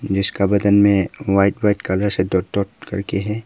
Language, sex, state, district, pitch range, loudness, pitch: Hindi, male, Arunachal Pradesh, Papum Pare, 95-100 Hz, -18 LUFS, 100 Hz